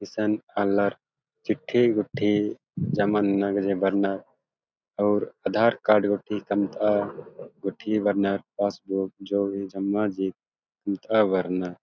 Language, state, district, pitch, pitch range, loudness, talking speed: Kurukh, Chhattisgarh, Jashpur, 100 Hz, 100-105 Hz, -25 LUFS, 110 wpm